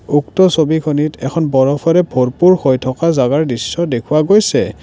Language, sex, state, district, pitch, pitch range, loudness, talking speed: Assamese, male, Assam, Kamrup Metropolitan, 155 Hz, 135-165 Hz, -13 LUFS, 135 wpm